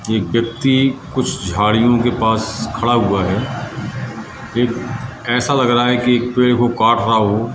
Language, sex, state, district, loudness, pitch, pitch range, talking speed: Hindi, male, Madhya Pradesh, Katni, -16 LUFS, 120 Hz, 110-125 Hz, 160 wpm